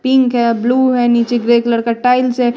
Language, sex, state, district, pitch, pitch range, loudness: Hindi, female, Bihar, West Champaran, 240 Hz, 235-250 Hz, -13 LUFS